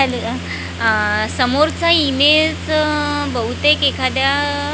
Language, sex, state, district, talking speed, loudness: Marathi, female, Maharashtra, Gondia, 90 wpm, -16 LUFS